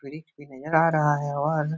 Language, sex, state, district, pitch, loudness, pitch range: Hindi, male, Bihar, Jahanabad, 150 Hz, -23 LUFS, 145-160 Hz